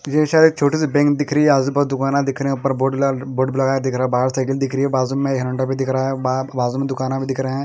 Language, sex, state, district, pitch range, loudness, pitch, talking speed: Hindi, male, Bihar, Patna, 130-140 Hz, -18 LUFS, 135 Hz, 330 wpm